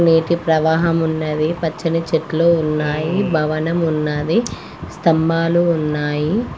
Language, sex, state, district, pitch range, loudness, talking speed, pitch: Telugu, female, Andhra Pradesh, Srikakulam, 155-170 Hz, -18 LUFS, 90 wpm, 160 Hz